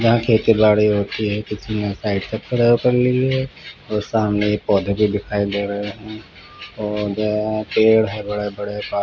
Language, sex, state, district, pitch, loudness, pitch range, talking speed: Hindi, male, Bihar, Patna, 105 Hz, -19 LUFS, 105-110 Hz, 155 wpm